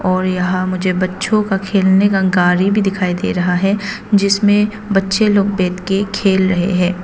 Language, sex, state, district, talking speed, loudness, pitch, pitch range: Hindi, female, Arunachal Pradesh, Papum Pare, 180 wpm, -15 LUFS, 190 Hz, 185-200 Hz